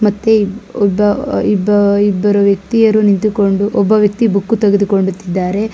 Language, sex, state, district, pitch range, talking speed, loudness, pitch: Kannada, female, Karnataka, Bangalore, 200-215 Hz, 115 wpm, -13 LUFS, 205 Hz